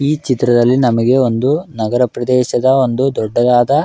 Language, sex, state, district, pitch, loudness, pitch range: Kannada, male, Karnataka, Raichur, 125 Hz, -14 LUFS, 120-135 Hz